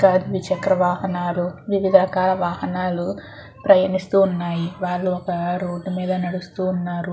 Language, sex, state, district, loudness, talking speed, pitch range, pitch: Telugu, female, Andhra Pradesh, Guntur, -21 LUFS, 110 wpm, 175-190 Hz, 185 Hz